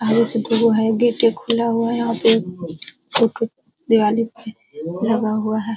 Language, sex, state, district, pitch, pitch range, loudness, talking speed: Hindi, female, Uttar Pradesh, Hamirpur, 225 Hz, 220-230 Hz, -18 LUFS, 145 wpm